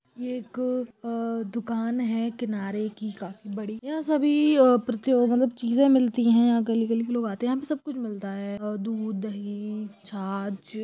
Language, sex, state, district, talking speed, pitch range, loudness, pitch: Hindi, female, Chhattisgarh, Sukma, 180 wpm, 210-250 Hz, -26 LUFS, 230 Hz